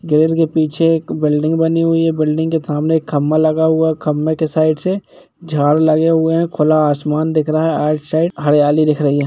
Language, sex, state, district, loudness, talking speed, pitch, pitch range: Hindi, male, Jharkhand, Jamtara, -15 LUFS, 235 wpm, 155 Hz, 150-160 Hz